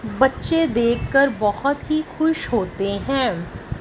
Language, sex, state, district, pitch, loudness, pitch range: Hindi, female, Punjab, Fazilka, 260 Hz, -20 LUFS, 205-285 Hz